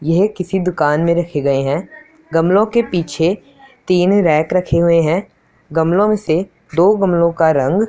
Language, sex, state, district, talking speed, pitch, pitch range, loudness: Hindi, male, Punjab, Pathankot, 160 wpm, 175 Hz, 160-200 Hz, -15 LUFS